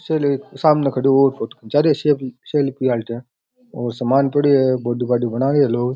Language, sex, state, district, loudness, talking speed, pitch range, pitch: Rajasthani, male, Rajasthan, Nagaur, -18 LUFS, 200 wpm, 125-145 Hz, 135 Hz